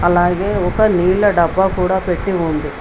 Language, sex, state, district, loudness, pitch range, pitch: Telugu, female, Telangana, Mahabubabad, -16 LUFS, 175-190 Hz, 180 Hz